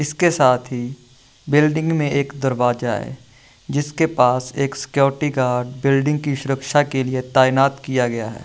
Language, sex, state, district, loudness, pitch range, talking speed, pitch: Hindi, male, Bihar, Vaishali, -19 LUFS, 125-145 Hz, 155 wpm, 135 Hz